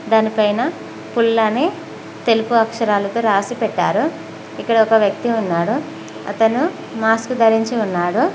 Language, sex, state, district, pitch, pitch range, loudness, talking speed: Telugu, female, Telangana, Mahabubabad, 225 Hz, 215-235 Hz, -17 LUFS, 110 wpm